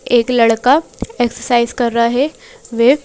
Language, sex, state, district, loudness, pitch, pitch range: Hindi, female, Madhya Pradesh, Bhopal, -14 LUFS, 240 Hz, 235-255 Hz